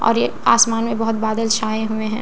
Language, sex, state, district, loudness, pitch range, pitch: Hindi, female, Bihar, Katihar, -18 LUFS, 220-230 Hz, 225 Hz